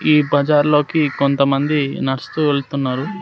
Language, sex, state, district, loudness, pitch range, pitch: Telugu, male, Andhra Pradesh, Sri Satya Sai, -17 LUFS, 140-150 Hz, 145 Hz